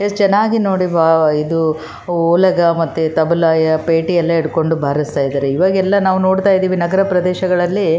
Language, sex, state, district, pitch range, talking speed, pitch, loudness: Kannada, female, Karnataka, Raichur, 160-185 Hz, 120 wpm, 170 Hz, -14 LUFS